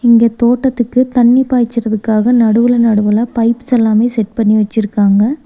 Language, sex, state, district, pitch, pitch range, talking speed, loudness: Tamil, female, Tamil Nadu, Nilgiris, 230 Hz, 220-245 Hz, 120 wpm, -12 LUFS